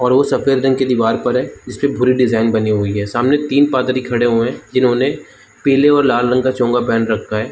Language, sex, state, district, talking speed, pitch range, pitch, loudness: Hindi, male, Jharkhand, Jamtara, 225 wpm, 115-135 Hz, 125 Hz, -15 LUFS